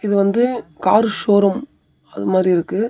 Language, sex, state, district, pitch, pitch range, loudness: Tamil, male, Tamil Nadu, Namakkal, 205 Hz, 190-225 Hz, -17 LUFS